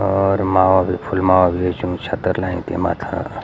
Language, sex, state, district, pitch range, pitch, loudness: Garhwali, male, Uttarakhand, Uttarkashi, 90-95 Hz, 95 Hz, -18 LUFS